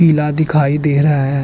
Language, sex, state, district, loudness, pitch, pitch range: Hindi, male, Uttar Pradesh, Hamirpur, -14 LUFS, 150 Hz, 140-155 Hz